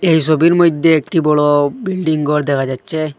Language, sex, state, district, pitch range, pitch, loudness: Bengali, male, Assam, Hailakandi, 150-165 Hz, 155 Hz, -14 LUFS